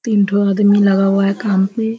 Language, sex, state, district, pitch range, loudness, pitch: Hindi, female, Bihar, Kishanganj, 195-210 Hz, -14 LUFS, 200 Hz